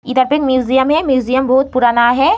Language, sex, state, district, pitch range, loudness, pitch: Hindi, female, Bihar, Jamui, 255-270 Hz, -13 LUFS, 260 Hz